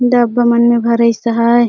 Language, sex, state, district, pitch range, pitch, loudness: Chhattisgarhi, female, Chhattisgarh, Jashpur, 235-240 Hz, 235 Hz, -12 LUFS